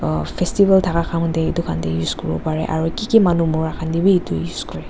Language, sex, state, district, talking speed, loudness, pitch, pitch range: Nagamese, female, Nagaland, Dimapur, 255 wpm, -19 LUFS, 165 Hz, 155-175 Hz